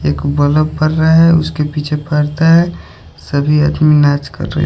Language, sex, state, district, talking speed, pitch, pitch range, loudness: Hindi, male, Haryana, Charkhi Dadri, 180 wpm, 150 Hz, 145-160 Hz, -12 LUFS